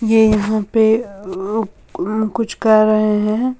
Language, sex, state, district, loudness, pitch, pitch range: Hindi, female, Uttar Pradesh, Lalitpur, -16 LUFS, 215 Hz, 210-225 Hz